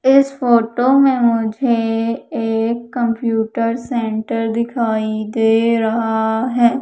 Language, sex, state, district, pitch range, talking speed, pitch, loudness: Hindi, female, Madhya Pradesh, Umaria, 225-240 Hz, 95 wpm, 230 Hz, -17 LUFS